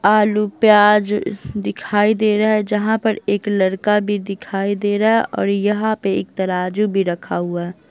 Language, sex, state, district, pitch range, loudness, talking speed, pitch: Hindi, female, Bihar, Patna, 190-210 Hz, -18 LUFS, 180 wpm, 205 Hz